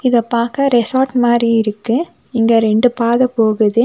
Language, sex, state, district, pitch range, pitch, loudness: Tamil, female, Tamil Nadu, Nilgiris, 225-250 Hz, 235 Hz, -14 LUFS